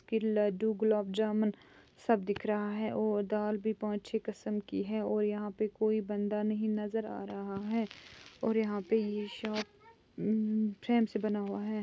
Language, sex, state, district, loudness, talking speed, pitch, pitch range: Hindi, female, Andhra Pradesh, Chittoor, -34 LUFS, 175 wpm, 215 Hz, 210-220 Hz